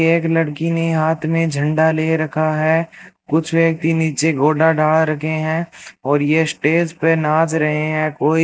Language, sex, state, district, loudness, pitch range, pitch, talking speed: Hindi, male, Rajasthan, Bikaner, -17 LUFS, 155-165 Hz, 160 Hz, 180 wpm